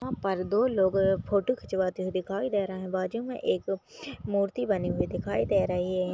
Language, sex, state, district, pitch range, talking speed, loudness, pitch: Hindi, female, Maharashtra, Aurangabad, 185-200 Hz, 205 wpm, -29 LUFS, 195 Hz